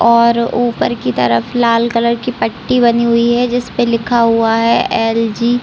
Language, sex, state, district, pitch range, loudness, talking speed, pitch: Hindi, female, Chhattisgarh, Raigarh, 230-240 Hz, -13 LUFS, 190 wpm, 235 Hz